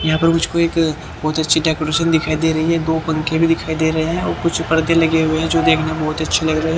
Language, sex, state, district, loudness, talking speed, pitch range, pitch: Hindi, male, Haryana, Jhajjar, -17 LUFS, 285 wpm, 155-165 Hz, 160 Hz